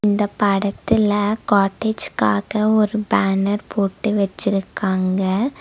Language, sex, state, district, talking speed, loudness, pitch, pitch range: Tamil, female, Tamil Nadu, Nilgiris, 75 wpm, -19 LUFS, 205 Hz, 195-215 Hz